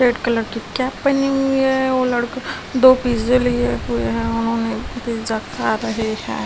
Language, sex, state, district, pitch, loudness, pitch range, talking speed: Hindi, female, Delhi, New Delhi, 235 Hz, -19 LUFS, 220-255 Hz, 175 wpm